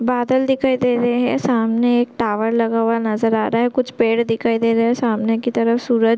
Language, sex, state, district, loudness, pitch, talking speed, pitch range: Hindi, female, Chhattisgarh, Korba, -18 LUFS, 235 Hz, 235 wpm, 225-245 Hz